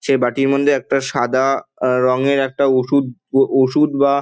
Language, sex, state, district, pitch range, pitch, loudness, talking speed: Bengali, male, West Bengal, Dakshin Dinajpur, 130-140 Hz, 135 Hz, -16 LUFS, 170 wpm